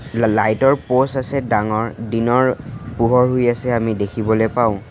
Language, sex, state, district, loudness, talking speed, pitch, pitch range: Assamese, male, Assam, Sonitpur, -18 LUFS, 160 wpm, 120 Hz, 110-130 Hz